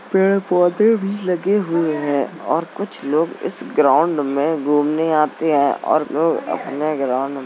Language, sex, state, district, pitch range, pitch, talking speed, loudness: Hindi, male, Uttar Pradesh, Jalaun, 145-180 Hz, 155 Hz, 170 wpm, -18 LUFS